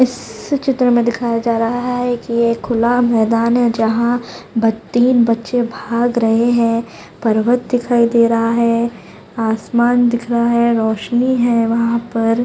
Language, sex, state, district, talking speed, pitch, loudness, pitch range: Hindi, female, Maharashtra, Chandrapur, 155 wpm, 235 Hz, -15 LUFS, 230-240 Hz